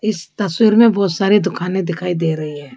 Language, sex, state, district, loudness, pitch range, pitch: Hindi, female, Rajasthan, Jaipur, -16 LUFS, 165-210 Hz, 190 Hz